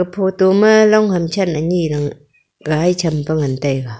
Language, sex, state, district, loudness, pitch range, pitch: Wancho, female, Arunachal Pradesh, Longding, -15 LUFS, 145-190 Hz, 170 Hz